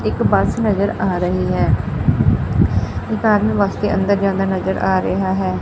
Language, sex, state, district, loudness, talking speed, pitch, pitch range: Punjabi, female, Punjab, Fazilka, -17 LUFS, 170 wpm, 195 Hz, 190-205 Hz